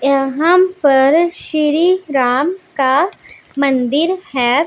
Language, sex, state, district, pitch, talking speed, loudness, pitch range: Hindi, female, Punjab, Pathankot, 295 Hz, 90 wpm, -14 LUFS, 270-350 Hz